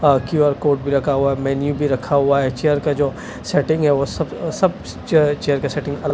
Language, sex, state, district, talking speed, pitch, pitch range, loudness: Hindi, male, Delhi, New Delhi, 225 wpm, 145 Hz, 140-150 Hz, -18 LUFS